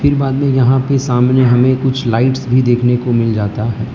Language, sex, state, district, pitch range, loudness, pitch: Hindi, male, Gujarat, Valsad, 120-130 Hz, -13 LUFS, 125 Hz